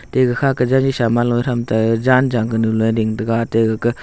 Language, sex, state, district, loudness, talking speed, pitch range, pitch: Wancho, male, Arunachal Pradesh, Longding, -17 LUFS, 225 wpm, 115-125 Hz, 120 Hz